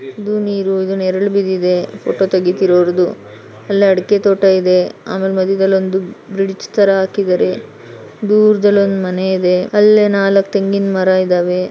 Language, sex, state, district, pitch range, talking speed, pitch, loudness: Kannada, female, Karnataka, Shimoga, 185-200 Hz, 140 wpm, 190 Hz, -14 LUFS